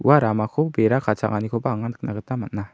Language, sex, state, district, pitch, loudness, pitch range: Garo, male, Meghalaya, South Garo Hills, 110 Hz, -22 LUFS, 105-130 Hz